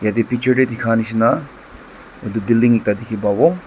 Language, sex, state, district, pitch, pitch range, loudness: Nagamese, male, Nagaland, Dimapur, 115 Hz, 110-120 Hz, -17 LUFS